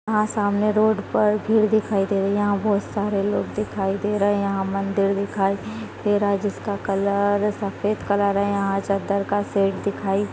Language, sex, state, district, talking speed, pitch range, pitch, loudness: Hindi, female, Maharashtra, Solapur, 190 wpm, 195-205 Hz, 200 Hz, -22 LUFS